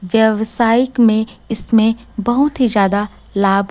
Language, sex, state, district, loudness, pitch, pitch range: Hindi, female, Chhattisgarh, Raipur, -15 LUFS, 220 Hz, 210-235 Hz